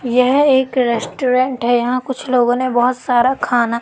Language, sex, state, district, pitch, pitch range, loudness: Hindi, female, Madhya Pradesh, Katni, 250 Hz, 240-260 Hz, -15 LUFS